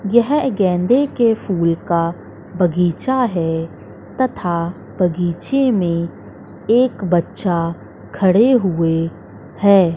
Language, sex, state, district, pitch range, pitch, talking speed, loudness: Hindi, female, Madhya Pradesh, Katni, 170-230 Hz, 180 Hz, 90 wpm, -17 LUFS